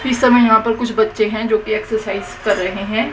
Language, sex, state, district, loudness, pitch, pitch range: Hindi, female, Haryana, Jhajjar, -16 LUFS, 220 Hz, 205-225 Hz